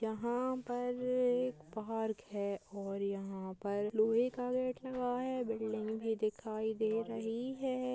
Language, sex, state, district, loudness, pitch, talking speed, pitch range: Hindi, female, Uttarakhand, Uttarkashi, -37 LUFS, 225 Hz, 145 wpm, 215-250 Hz